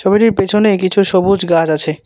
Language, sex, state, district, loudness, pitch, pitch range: Bengali, male, West Bengal, Alipurduar, -12 LUFS, 190 Hz, 165-200 Hz